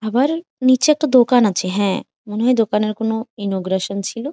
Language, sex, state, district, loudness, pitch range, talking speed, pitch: Bengali, female, West Bengal, Jhargram, -18 LUFS, 200-255 Hz, 195 wpm, 225 Hz